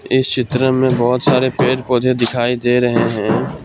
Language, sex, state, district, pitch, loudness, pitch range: Hindi, male, Assam, Kamrup Metropolitan, 125 Hz, -15 LUFS, 120-130 Hz